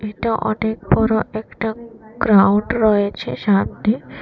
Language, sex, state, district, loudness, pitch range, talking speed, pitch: Bengali, female, Tripura, West Tripura, -18 LUFS, 210-225 Hz, 100 wpm, 220 Hz